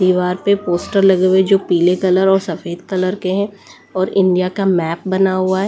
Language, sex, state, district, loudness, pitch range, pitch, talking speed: Hindi, female, Delhi, New Delhi, -16 LUFS, 180-195 Hz, 185 Hz, 210 wpm